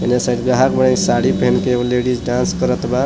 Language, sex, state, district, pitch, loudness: Bhojpuri, male, Jharkhand, Palamu, 120 Hz, -16 LUFS